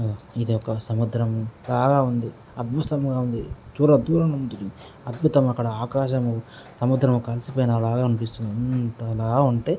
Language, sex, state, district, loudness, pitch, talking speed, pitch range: Telugu, male, Telangana, Karimnagar, -23 LUFS, 120 Hz, 130 wpm, 115-135 Hz